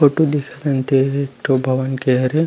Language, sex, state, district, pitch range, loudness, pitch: Chhattisgarhi, male, Chhattisgarh, Rajnandgaon, 130-145 Hz, -18 LUFS, 135 Hz